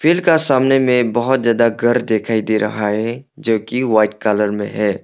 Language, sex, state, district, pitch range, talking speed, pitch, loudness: Hindi, male, Arunachal Pradesh, Longding, 105-130 Hz, 190 wpm, 115 Hz, -16 LUFS